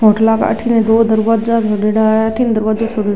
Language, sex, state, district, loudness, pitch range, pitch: Rajasthani, female, Rajasthan, Nagaur, -13 LUFS, 215-225 Hz, 220 Hz